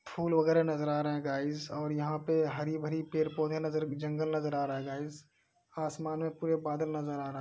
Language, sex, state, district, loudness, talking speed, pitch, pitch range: Hindi, male, Uttar Pradesh, Hamirpur, -33 LUFS, 245 wpm, 155 Hz, 150-155 Hz